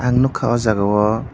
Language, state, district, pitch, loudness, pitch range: Kokborok, Tripura, Dhalai, 115 Hz, -17 LUFS, 105-125 Hz